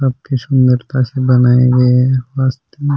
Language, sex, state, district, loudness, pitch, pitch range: Rajasthani, male, Rajasthan, Churu, -13 LUFS, 130 Hz, 125-130 Hz